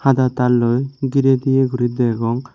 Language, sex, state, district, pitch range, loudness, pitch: Chakma, male, Tripura, Unakoti, 120-135 Hz, -17 LUFS, 130 Hz